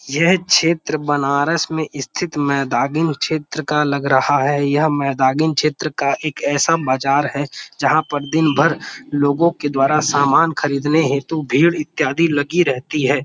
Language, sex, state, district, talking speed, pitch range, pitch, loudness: Hindi, male, Uttar Pradesh, Varanasi, 155 wpm, 140-160 Hz, 150 Hz, -17 LUFS